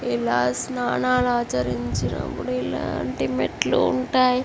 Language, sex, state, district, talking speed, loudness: Telugu, female, Andhra Pradesh, Visakhapatnam, 80 wpm, -23 LUFS